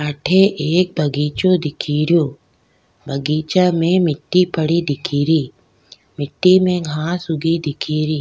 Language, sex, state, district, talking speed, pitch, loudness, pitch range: Rajasthani, female, Rajasthan, Nagaur, 100 wpm, 155 Hz, -17 LUFS, 150-180 Hz